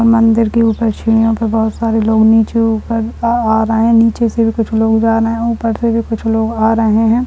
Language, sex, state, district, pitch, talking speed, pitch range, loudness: Hindi, female, Bihar, Bhagalpur, 225 Hz, 245 wpm, 225-230 Hz, -13 LUFS